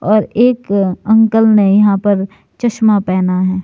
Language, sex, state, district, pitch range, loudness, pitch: Hindi, male, Himachal Pradesh, Shimla, 195-220 Hz, -12 LUFS, 205 Hz